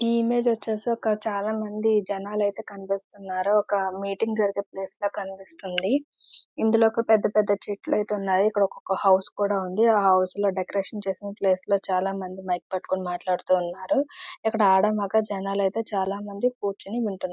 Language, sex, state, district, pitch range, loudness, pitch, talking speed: Telugu, female, Andhra Pradesh, Visakhapatnam, 190-220 Hz, -25 LUFS, 200 Hz, 165 wpm